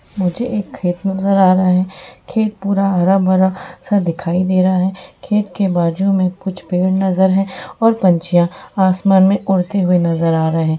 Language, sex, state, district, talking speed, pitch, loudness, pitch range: Hindi, female, Jharkhand, Sahebganj, 200 wpm, 190 Hz, -15 LUFS, 180-195 Hz